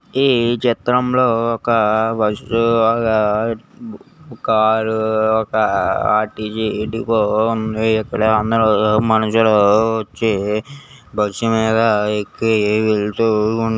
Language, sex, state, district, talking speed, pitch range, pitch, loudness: Telugu, male, Andhra Pradesh, Srikakulam, 80 wpm, 110-115 Hz, 110 Hz, -17 LUFS